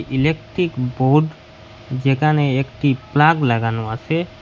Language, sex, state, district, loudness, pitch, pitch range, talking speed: Bengali, male, Assam, Hailakandi, -18 LUFS, 135 Hz, 120-155 Hz, 95 wpm